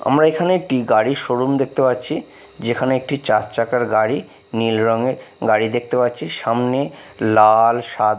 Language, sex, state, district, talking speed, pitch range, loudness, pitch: Bengali, male, Bihar, Katihar, 145 wpm, 110-130 Hz, -18 LUFS, 120 Hz